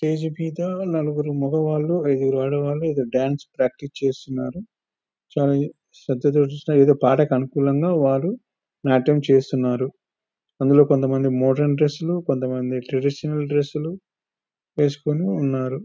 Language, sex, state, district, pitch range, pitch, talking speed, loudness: Telugu, male, Telangana, Nalgonda, 135-155 Hz, 145 Hz, 95 wpm, -21 LUFS